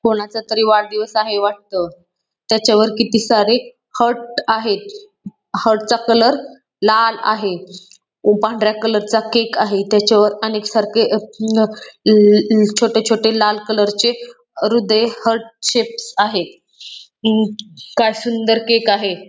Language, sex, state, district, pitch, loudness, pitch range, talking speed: Marathi, female, Maharashtra, Pune, 220 Hz, -16 LUFS, 210-230 Hz, 120 wpm